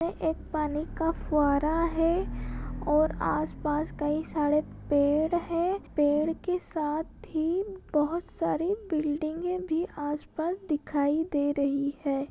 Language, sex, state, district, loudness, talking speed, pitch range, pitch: Hindi, female, Bihar, Gopalganj, -29 LUFS, 120 wpm, 295-335 Hz, 310 Hz